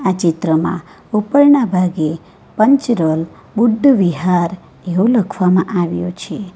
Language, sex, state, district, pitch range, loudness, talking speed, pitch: Gujarati, female, Gujarat, Valsad, 170-225 Hz, -15 LUFS, 80 wpm, 185 Hz